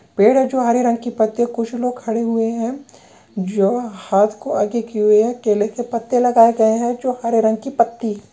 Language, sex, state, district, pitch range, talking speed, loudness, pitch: Marwari, female, Rajasthan, Nagaur, 220-240 Hz, 215 wpm, -18 LUFS, 230 Hz